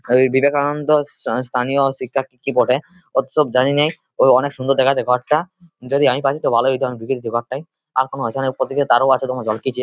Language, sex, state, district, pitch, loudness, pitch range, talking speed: Bengali, male, West Bengal, Purulia, 135 Hz, -18 LUFS, 125-145 Hz, 190 wpm